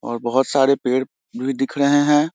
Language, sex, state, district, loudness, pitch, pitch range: Hindi, male, Bihar, Muzaffarpur, -19 LUFS, 135 Hz, 130-145 Hz